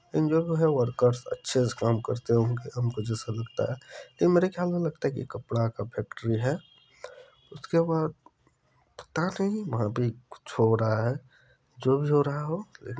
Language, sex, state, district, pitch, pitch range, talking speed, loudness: Hindi, male, Bihar, Supaul, 130 Hz, 115-160 Hz, 170 wpm, -28 LUFS